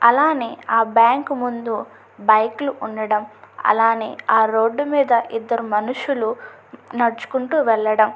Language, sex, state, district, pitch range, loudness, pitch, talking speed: Telugu, female, Andhra Pradesh, Anantapur, 220-255 Hz, -19 LUFS, 230 Hz, 110 wpm